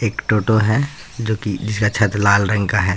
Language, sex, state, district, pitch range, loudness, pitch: Hindi, male, Bihar, Katihar, 100-110 Hz, -18 LUFS, 105 Hz